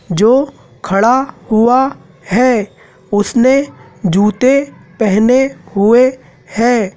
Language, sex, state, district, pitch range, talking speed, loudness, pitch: Hindi, male, Madhya Pradesh, Dhar, 200-255 Hz, 75 wpm, -13 LUFS, 225 Hz